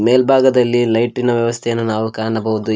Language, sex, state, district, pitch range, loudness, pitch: Kannada, male, Karnataka, Koppal, 110-125 Hz, -15 LUFS, 115 Hz